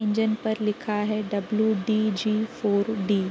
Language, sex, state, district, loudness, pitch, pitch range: Hindi, female, Uttar Pradesh, Varanasi, -25 LUFS, 215 Hz, 205-220 Hz